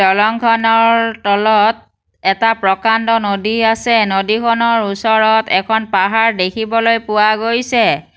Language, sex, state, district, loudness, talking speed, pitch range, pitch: Assamese, female, Assam, Kamrup Metropolitan, -13 LUFS, 95 wpm, 210-230 Hz, 220 Hz